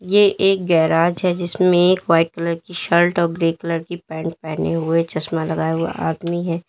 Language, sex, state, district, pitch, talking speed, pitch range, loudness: Hindi, female, Uttar Pradesh, Lalitpur, 170 Hz, 195 wpm, 165-175 Hz, -19 LUFS